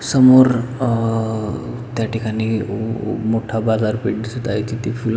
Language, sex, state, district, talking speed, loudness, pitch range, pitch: Marathi, male, Maharashtra, Pune, 140 wpm, -18 LUFS, 110-120 Hz, 115 Hz